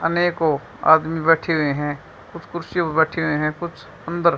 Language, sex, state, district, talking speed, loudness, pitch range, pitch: Hindi, female, Haryana, Charkhi Dadri, 180 wpm, -20 LUFS, 155-170 Hz, 160 Hz